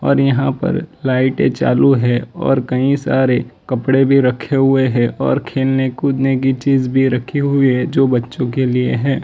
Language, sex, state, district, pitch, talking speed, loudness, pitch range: Hindi, male, Gujarat, Valsad, 135 Hz, 180 wpm, -15 LUFS, 130-135 Hz